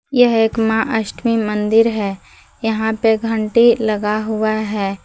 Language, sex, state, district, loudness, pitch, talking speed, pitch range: Hindi, female, Jharkhand, Palamu, -17 LUFS, 220 Hz, 140 wpm, 215-225 Hz